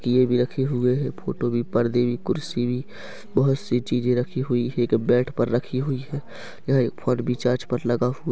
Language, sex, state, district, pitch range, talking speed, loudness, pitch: Hindi, male, Chhattisgarh, Rajnandgaon, 120-135 Hz, 225 wpm, -24 LUFS, 125 Hz